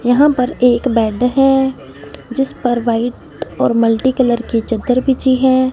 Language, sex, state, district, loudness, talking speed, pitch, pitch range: Hindi, female, Punjab, Fazilka, -15 LUFS, 155 wpm, 245 Hz, 230-260 Hz